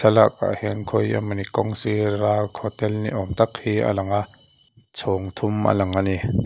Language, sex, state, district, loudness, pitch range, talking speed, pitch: Mizo, male, Mizoram, Aizawl, -23 LUFS, 100-110 Hz, 205 wpm, 105 Hz